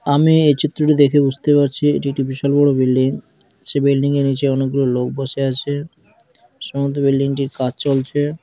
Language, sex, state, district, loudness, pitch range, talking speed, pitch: Bengali, female, West Bengal, Dakshin Dinajpur, -17 LUFS, 135-145 Hz, 165 wpm, 140 Hz